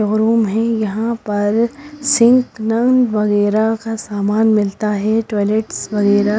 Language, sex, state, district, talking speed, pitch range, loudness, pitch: Hindi, female, Himachal Pradesh, Shimla, 120 wpm, 210-230 Hz, -16 LUFS, 220 Hz